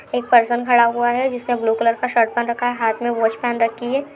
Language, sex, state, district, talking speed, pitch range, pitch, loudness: Hindi, female, Uttar Pradesh, Jyotiba Phule Nagar, 275 wpm, 230-245 Hz, 240 Hz, -18 LUFS